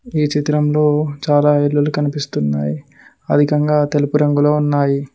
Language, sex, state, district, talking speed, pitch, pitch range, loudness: Telugu, male, Telangana, Mahabubabad, 105 wpm, 145 Hz, 145-150 Hz, -16 LUFS